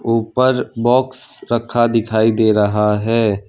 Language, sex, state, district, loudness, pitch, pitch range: Hindi, male, Gujarat, Valsad, -16 LUFS, 115 Hz, 110-120 Hz